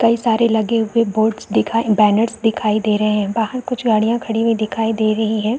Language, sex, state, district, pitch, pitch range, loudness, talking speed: Hindi, female, Chhattisgarh, Korba, 225 Hz, 215-230 Hz, -17 LUFS, 215 wpm